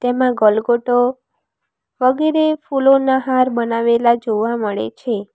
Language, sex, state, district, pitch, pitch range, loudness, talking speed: Gujarati, female, Gujarat, Valsad, 245 Hz, 230-260 Hz, -16 LUFS, 100 wpm